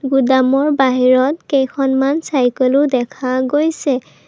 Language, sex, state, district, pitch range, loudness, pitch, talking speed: Assamese, female, Assam, Kamrup Metropolitan, 255-280 Hz, -15 LUFS, 270 Hz, 85 wpm